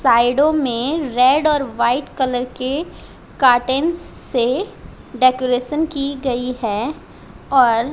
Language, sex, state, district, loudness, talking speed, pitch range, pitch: Hindi, female, Haryana, Charkhi Dadri, -18 LUFS, 105 wpm, 245-290 Hz, 260 Hz